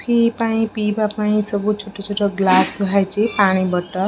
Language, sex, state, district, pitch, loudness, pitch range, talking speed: Odia, female, Odisha, Khordha, 205 Hz, -18 LUFS, 195-215 Hz, 160 wpm